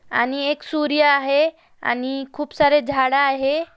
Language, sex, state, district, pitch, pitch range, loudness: Marathi, female, Maharashtra, Aurangabad, 285 Hz, 270-300 Hz, -19 LUFS